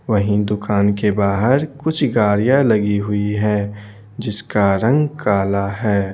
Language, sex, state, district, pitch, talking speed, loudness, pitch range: Hindi, male, Bihar, Patna, 105 Hz, 125 wpm, -17 LUFS, 100-115 Hz